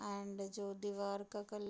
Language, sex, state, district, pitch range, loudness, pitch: Hindi, female, Uttar Pradesh, Deoria, 200-205 Hz, -44 LUFS, 200 Hz